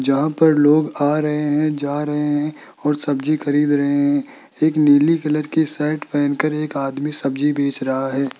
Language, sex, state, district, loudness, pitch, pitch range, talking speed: Hindi, male, Rajasthan, Jaipur, -18 LUFS, 145 Hz, 145-150 Hz, 185 wpm